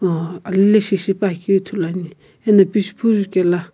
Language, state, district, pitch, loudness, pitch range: Sumi, Nagaland, Kohima, 195 Hz, -17 LUFS, 180-205 Hz